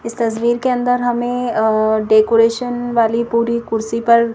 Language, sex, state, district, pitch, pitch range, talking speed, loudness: Hindi, female, Madhya Pradesh, Bhopal, 235 Hz, 225-240 Hz, 150 wpm, -16 LUFS